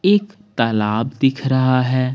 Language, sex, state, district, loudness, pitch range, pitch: Hindi, male, Bihar, Patna, -18 LUFS, 120-140 Hz, 130 Hz